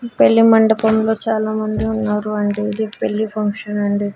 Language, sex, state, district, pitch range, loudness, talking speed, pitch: Telugu, female, Andhra Pradesh, Annamaya, 210-220 Hz, -17 LUFS, 130 wpm, 215 Hz